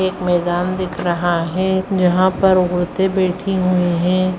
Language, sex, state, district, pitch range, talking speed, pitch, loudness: Hindi, female, Bihar, Madhepura, 175-185 Hz, 150 wpm, 185 Hz, -17 LUFS